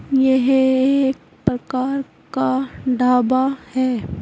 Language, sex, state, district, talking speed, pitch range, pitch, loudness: Hindi, female, Uttar Pradesh, Saharanpur, 85 wpm, 250-265 Hz, 260 Hz, -19 LUFS